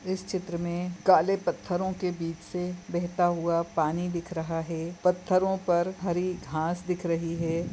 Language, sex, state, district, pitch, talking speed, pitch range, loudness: Hindi, male, Goa, North and South Goa, 175 Hz, 165 wpm, 170-180 Hz, -28 LUFS